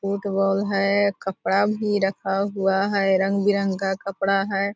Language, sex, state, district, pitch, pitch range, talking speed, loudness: Hindi, female, Bihar, Purnia, 195 Hz, 195-200 Hz, 140 wpm, -22 LUFS